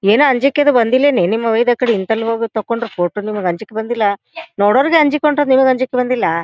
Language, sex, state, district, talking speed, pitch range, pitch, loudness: Kannada, female, Karnataka, Gulbarga, 185 wpm, 215-265 Hz, 235 Hz, -15 LUFS